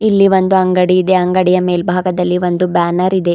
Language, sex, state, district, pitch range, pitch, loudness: Kannada, female, Karnataka, Bidar, 180-185 Hz, 180 Hz, -13 LUFS